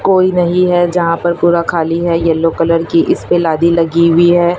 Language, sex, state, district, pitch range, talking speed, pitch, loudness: Hindi, male, Maharashtra, Mumbai Suburban, 165-175 Hz, 220 wpm, 170 Hz, -12 LUFS